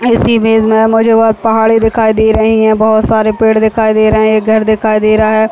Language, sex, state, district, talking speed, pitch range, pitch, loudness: Hindi, female, Chhattisgarh, Bilaspur, 260 wpm, 220-225 Hz, 220 Hz, -9 LUFS